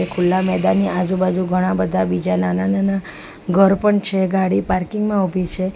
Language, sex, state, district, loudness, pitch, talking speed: Gujarati, female, Gujarat, Valsad, -18 LUFS, 185 Hz, 155 wpm